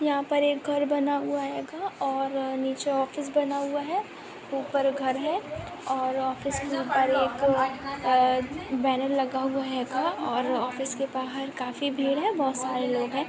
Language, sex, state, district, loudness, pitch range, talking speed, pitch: Hindi, female, Uttar Pradesh, Muzaffarnagar, -27 LUFS, 260-285 Hz, 165 wpm, 275 Hz